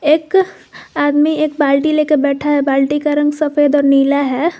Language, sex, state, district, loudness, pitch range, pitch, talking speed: Hindi, female, Jharkhand, Garhwa, -14 LUFS, 285-305 Hz, 295 Hz, 180 wpm